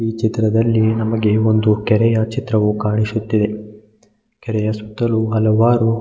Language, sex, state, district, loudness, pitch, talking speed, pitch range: Kannada, male, Karnataka, Mysore, -17 LUFS, 110 Hz, 100 wpm, 105-115 Hz